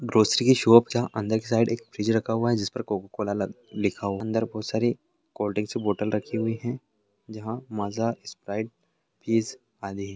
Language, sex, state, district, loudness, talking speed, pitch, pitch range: Hindi, male, Chhattisgarh, Jashpur, -26 LUFS, 195 wpm, 110 Hz, 105-115 Hz